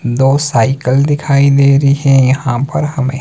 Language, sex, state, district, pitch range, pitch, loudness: Hindi, male, Himachal Pradesh, Shimla, 130-140 Hz, 140 Hz, -11 LUFS